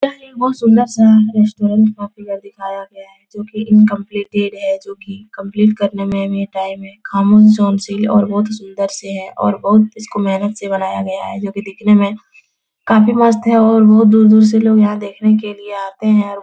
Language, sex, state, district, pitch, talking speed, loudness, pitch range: Hindi, female, Bihar, Jahanabad, 205 Hz, 205 wpm, -13 LUFS, 195-215 Hz